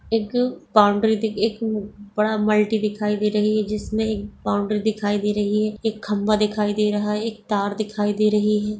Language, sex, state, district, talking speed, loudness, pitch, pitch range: Hindi, female, Bihar, Begusarai, 190 wpm, -22 LUFS, 210 Hz, 210-215 Hz